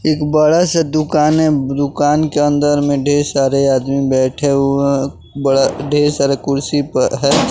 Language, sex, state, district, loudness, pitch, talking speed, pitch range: Hindi, male, Bihar, West Champaran, -14 LUFS, 145 Hz, 160 wpm, 140-150 Hz